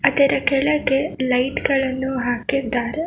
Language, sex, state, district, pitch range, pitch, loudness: Kannada, female, Karnataka, Bangalore, 255-275 Hz, 270 Hz, -20 LUFS